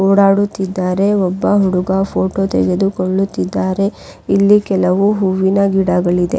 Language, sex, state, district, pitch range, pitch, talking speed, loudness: Kannada, female, Karnataka, Raichur, 185-200 Hz, 190 Hz, 85 wpm, -15 LUFS